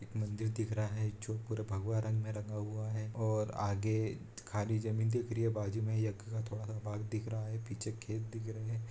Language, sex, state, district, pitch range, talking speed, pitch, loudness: Hindi, male, Bihar, Saran, 105-110 Hz, 230 wpm, 110 Hz, -38 LUFS